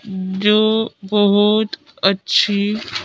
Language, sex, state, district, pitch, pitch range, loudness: Hindi, female, Madhya Pradesh, Bhopal, 205 Hz, 195-215 Hz, -17 LUFS